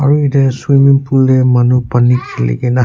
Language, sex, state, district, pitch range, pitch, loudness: Nagamese, male, Nagaland, Kohima, 125-135 Hz, 130 Hz, -11 LUFS